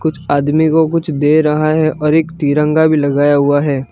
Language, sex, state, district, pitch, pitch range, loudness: Hindi, male, Gujarat, Gandhinagar, 150 Hz, 145-160 Hz, -13 LUFS